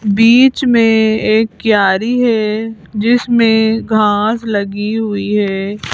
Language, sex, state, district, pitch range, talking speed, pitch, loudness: Hindi, female, Madhya Pradesh, Bhopal, 205-225 Hz, 100 wpm, 220 Hz, -13 LUFS